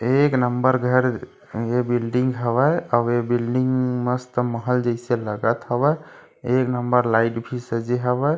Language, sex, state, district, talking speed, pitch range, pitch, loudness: Chhattisgarhi, male, Chhattisgarh, Kabirdham, 145 wpm, 120-130 Hz, 125 Hz, -21 LUFS